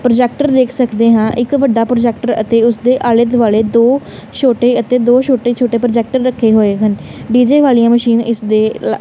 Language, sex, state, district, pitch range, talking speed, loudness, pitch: Punjabi, female, Punjab, Kapurthala, 230-250 Hz, 185 wpm, -12 LUFS, 240 Hz